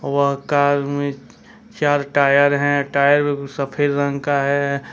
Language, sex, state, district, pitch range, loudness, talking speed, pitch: Hindi, male, Jharkhand, Ranchi, 140-145 Hz, -18 LUFS, 135 wpm, 140 Hz